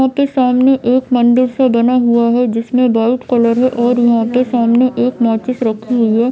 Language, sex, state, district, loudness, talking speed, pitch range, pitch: Hindi, female, Jharkhand, Jamtara, -13 LUFS, 200 wpm, 235-255 Hz, 245 Hz